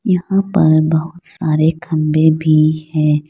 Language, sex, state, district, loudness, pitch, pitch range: Hindi, female, Uttar Pradesh, Saharanpur, -14 LUFS, 160 Hz, 155-175 Hz